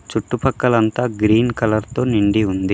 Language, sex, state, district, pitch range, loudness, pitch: Telugu, male, Telangana, Mahabubabad, 110-125 Hz, -18 LUFS, 110 Hz